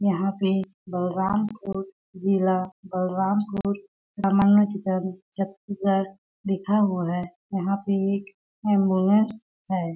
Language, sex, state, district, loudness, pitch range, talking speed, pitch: Hindi, female, Chhattisgarh, Balrampur, -25 LUFS, 190-200 Hz, 85 wpm, 195 Hz